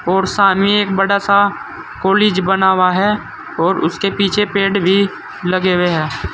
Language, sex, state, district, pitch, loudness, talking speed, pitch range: Hindi, male, Uttar Pradesh, Saharanpur, 195 Hz, -15 LUFS, 160 wpm, 185-200 Hz